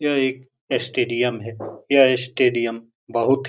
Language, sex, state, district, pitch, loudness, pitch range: Hindi, male, Bihar, Saran, 125 Hz, -21 LUFS, 115-135 Hz